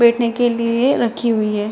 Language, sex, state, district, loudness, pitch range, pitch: Hindi, female, Bihar, Jamui, -17 LUFS, 225-240 Hz, 235 Hz